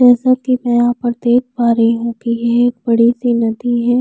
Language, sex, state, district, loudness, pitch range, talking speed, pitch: Hindi, female, Uttar Pradesh, Jyotiba Phule Nagar, -14 LUFS, 235-245 Hz, 240 wpm, 240 Hz